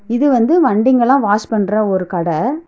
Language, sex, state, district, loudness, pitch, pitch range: Tamil, female, Tamil Nadu, Nilgiris, -14 LUFS, 230 Hz, 205-270 Hz